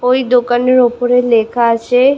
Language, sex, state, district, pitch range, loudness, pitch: Bengali, female, West Bengal, Malda, 240-250 Hz, -12 LUFS, 245 Hz